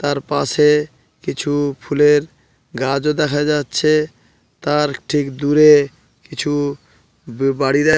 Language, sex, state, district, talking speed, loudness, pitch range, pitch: Bengali, male, West Bengal, Paschim Medinipur, 105 wpm, -17 LUFS, 135-150 Hz, 145 Hz